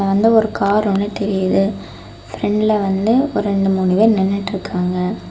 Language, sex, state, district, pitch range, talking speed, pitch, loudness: Tamil, female, Tamil Nadu, Kanyakumari, 185-210 Hz, 135 wpm, 195 Hz, -17 LUFS